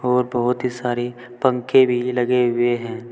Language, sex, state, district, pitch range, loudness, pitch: Hindi, male, Uttar Pradesh, Saharanpur, 120-125 Hz, -20 LUFS, 125 Hz